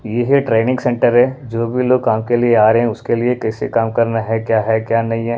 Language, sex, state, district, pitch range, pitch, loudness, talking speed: Hindi, male, Punjab, Pathankot, 115-125 Hz, 115 Hz, -15 LUFS, 270 wpm